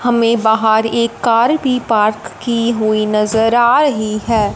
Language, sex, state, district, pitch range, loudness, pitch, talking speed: Hindi, female, Punjab, Fazilka, 215-235 Hz, -14 LUFS, 230 Hz, 160 wpm